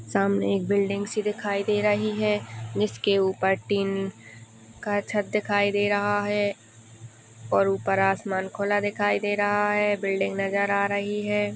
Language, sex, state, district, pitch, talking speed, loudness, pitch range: Hindi, female, Bihar, Purnia, 200 Hz, 155 wpm, -25 LUFS, 150-205 Hz